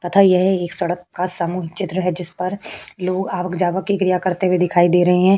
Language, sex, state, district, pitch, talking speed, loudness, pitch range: Hindi, female, Uttar Pradesh, Hamirpur, 180 Hz, 225 wpm, -19 LUFS, 180-190 Hz